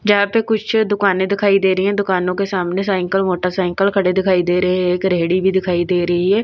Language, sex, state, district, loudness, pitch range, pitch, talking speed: Hindi, female, Bihar, Patna, -17 LUFS, 180-200 Hz, 190 Hz, 230 wpm